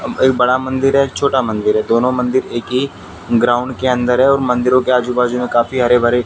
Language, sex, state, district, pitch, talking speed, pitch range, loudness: Hindi, male, Haryana, Jhajjar, 125 Hz, 250 wpm, 120-130 Hz, -15 LUFS